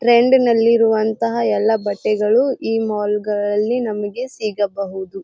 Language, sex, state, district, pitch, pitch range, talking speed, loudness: Kannada, female, Karnataka, Bijapur, 220 Hz, 205-235 Hz, 105 wpm, -18 LUFS